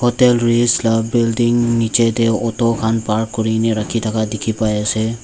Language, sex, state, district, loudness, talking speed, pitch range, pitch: Nagamese, male, Nagaland, Dimapur, -16 LUFS, 135 wpm, 110-120 Hz, 115 Hz